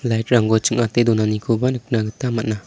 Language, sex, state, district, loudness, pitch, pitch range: Garo, male, Meghalaya, South Garo Hills, -19 LUFS, 115 Hz, 110-120 Hz